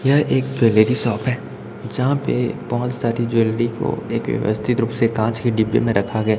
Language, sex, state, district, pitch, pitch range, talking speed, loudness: Hindi, male, Chhattisgarh, Raipur, 115 Hz, 110-125 Hz, 205 wpm, -20 LUFS